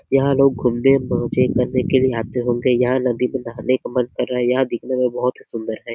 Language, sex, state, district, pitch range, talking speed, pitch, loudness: Hindi, male, Chhattisgarh, Sarguja, 120-130 Hz, 230 wpm, 125 Hz, -19 LUFS